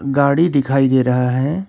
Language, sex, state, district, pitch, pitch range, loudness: Hindi, male, Karnataka, Bangalore, 135 Hz, 130-145 Hz, -15 LUFS